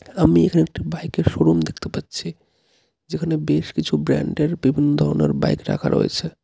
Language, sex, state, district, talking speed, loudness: Bengali, male, West Bengal, Darjeeling, 150 wpm, -20 LUFS